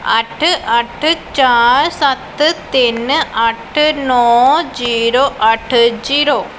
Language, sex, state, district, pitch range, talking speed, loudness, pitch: Punjabi, female, Punjab, Pathankot, 235-290 Hz, 100 wpm, -13 LUFS, 255 Hz